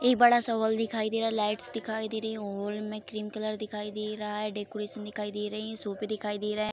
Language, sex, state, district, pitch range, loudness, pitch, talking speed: Hindi, female, Bihar, Darbhanga, 210-220 Hz, -31 LUFS, 215 Hz, 250 wpm